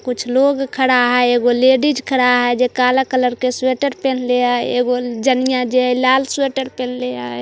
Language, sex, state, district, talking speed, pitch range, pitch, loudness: Hindi, female, Bihar, Katihar, 225 wpm, 245-260 Hz, 250 Hz, -16 LUFS